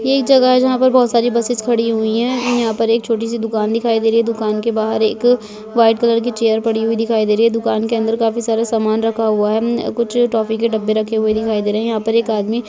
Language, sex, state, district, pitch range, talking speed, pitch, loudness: Hindi, female, Bihar, Darbhanga, 220-235 Hz, 280 wpm, 225 Hz, -16 LUFS